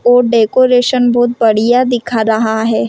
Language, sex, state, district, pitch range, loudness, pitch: Hindi, female, Chhattisgarh, Rajnandgaon, 220-245 Hz, -11 LUFS, 240 Hz